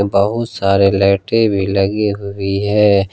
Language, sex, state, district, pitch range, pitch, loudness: Hindi, male, Jharkhand, Ranchi, 100-105 Hz, 100 Hz, -15 LUFS